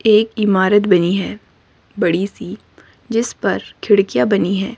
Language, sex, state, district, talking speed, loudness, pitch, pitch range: Hindi, female, Himachal Pradesh, Shimla, 140 wpm, -16 LUFS, 200 Hz, 185-215 Hz